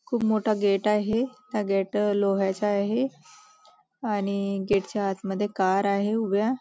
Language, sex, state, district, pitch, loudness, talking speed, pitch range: Marathi, female, Maharashtra, Nagpur, 205 Hz, -26 LUFS, 145 wpm, 200-225 Hz